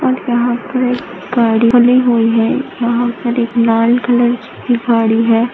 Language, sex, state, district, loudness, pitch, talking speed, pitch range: Hindi, female, Maharashtra, Pune, -13 LUFS, 240 Hz, 160 wpm, 230-245 Hz